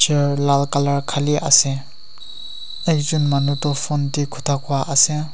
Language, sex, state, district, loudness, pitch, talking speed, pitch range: Nagamese, male, Nagaland, Kohima, -18 LUFS, 140 Hz, 135 wpm, 140-150 Hz